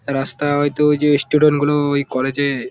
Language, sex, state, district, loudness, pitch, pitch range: Bengali, male, West Bengal, Jalpaiguri, -17 LUFS, 145 Hz, 135-145 Hz